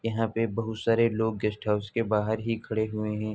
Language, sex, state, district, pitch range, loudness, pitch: Hindi, male, Uttar Pradesh, Jalaun, 105-115 Hz, -28 LUFS, 110 Hz